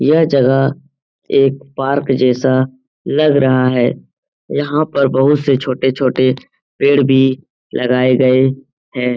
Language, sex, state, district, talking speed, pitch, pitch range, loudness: Hindi, male, Bihar, Lakhisarai, 120 wpm, 135 Hz, 130-140 Hz, -14 LUFS